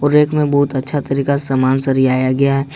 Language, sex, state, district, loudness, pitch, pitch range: Hindi, male, Jharkhand, Ranchi, -15 LUFS, 140 Hz, 130-145 Hz